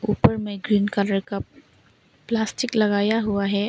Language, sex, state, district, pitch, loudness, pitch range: Hindi, female, Arunachal Pradesh, Longding, 210 Hz, -23 LUFS, 200-220 Hz